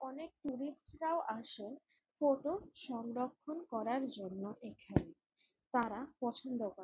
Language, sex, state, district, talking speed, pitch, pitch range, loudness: Bengali, female, West Bengal, Jalpaiguri, 115 wpm, 265 Hz, 230-300 Hz, -40 LUFS